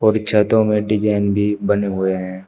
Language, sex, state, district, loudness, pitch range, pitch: Hindi, male, Uttar Pradesh, Shamli, -17 LUFS, 100-105 Hz, 105 Hz